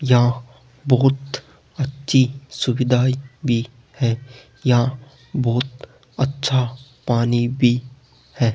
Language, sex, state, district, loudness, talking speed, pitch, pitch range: Hindi, male, Rajasthan, Jaipur, -20 LUFS, 85 wpm, 125 Hz, 120-135 Hz